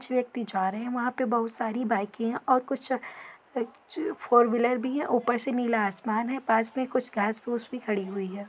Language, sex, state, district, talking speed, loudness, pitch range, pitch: Hindi, female, Uttar Pradesh, Etah, 220 wpm, -28 LUFS, 225-255 Hz, 240 Hz